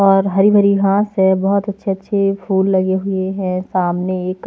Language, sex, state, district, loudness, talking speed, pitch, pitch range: Hindi, female, Haryana, Jhajjar, -16 LUFS, 185 wpm, 195 Hz, 190-195 Hz